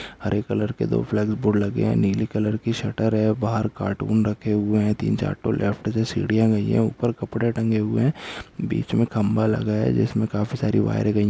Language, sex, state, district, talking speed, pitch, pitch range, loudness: Hindi, male, Uttar Pradesh, Hamirpur, 225 wpm, 110 Hz, 105-110 Hz, -23 LUFS